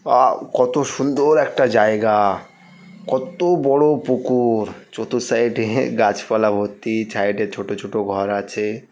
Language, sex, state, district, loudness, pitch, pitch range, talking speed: Bengali, male, West Bengal, North 24 Parganas, -19 LUFS, 120 Hz, 105-140 Hz, 140 wpm